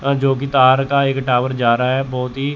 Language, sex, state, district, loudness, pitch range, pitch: Hindi, male, Chandigarh, Chandigarh, -16 LUFS, 125-140 Hz, 135 Hz